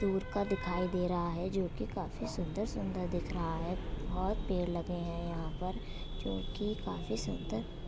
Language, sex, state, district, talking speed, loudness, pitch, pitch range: Hindi, female, Uttar Pradesh, Etah, 185 wpm, -37 LUFS, 175 Hz, 160-185 Hz